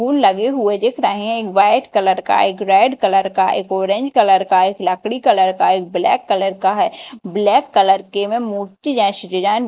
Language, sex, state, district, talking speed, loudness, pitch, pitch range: Hindi, female, Madhya Pradesh, Dhar, 215 wpm, -16 LUFS, 200 Hz, 190-230 Hz